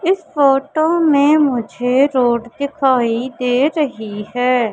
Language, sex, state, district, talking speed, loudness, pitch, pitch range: Hindi, female, Madhya Pradesh, Katni, 115 wpm, -16 LUFS, 260 Hz, 245-290 Hz